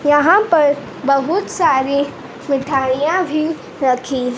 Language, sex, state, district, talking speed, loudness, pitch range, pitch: Hindi, female, Madhya Pradesh, Dhar, 95 wpm, -16 LUFS, 265-310 Hz, 285 Hz